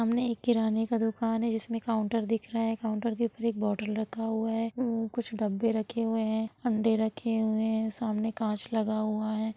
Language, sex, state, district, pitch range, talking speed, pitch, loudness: Hindi, female, Bihar, Sitamarhi, 220-230 Hz, 215 wpm, 225 Hz, -30 LUFS